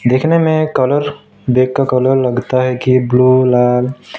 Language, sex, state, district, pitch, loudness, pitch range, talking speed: Hindi, male, West Bengal, Alipurduar, 130 Hz, -13 LUFS, 125-135 Hz, 145 wpm